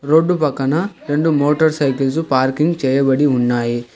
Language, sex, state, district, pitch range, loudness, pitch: Telugu, male, Telangana, Hyderabad, 135-160 Hz, -16 LUFS, 145 Hz